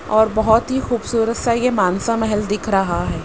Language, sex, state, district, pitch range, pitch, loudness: Hindi, female, Haryana, Rohtak, 210-235 Hz, 220 Hz, -18 LUFS